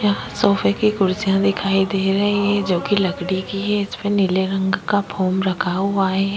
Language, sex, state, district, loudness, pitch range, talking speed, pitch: Hindi, female, Uttar Pradesh, Jyotiba Phule Nagar, -19 LUFS, 190-200 Hz, 200 wpm, 195 Hz